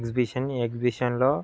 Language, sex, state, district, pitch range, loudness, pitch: Telugu, male, Andhra Pradesh, Guntur, 120-130 Hz, -26 LUFS, 125 Hz